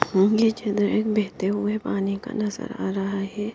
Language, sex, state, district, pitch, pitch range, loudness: Hindi, female, Bihar, Katihar, 205 Hz, 195-220 Hz, -24 LUFS